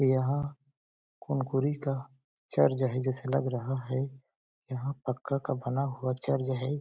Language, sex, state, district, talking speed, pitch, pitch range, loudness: Hindi, male, Chhattisgarh, Balrampur, 150 wpm, 135 Hz, 130-140 Hz, -31 LUFS